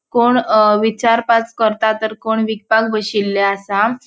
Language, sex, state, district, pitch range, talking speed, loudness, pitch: Konkani, female, Goa, North and South Goa, 210-230 Hz, 145 wpm, -15 LUFS, 220 Hz